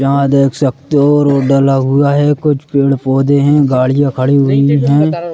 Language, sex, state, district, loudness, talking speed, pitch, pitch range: Hindi, male, Madhya Pradesh, Bhopal, -11 LUFS, 170 wpm, 140 Hz, 135-145 Hz